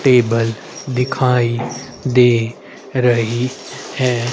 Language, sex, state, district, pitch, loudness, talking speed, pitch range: Hindi, male, Haryana, Rohtak, 125 Hz, -17 LUFS, 70 wpm, 120-130 Hz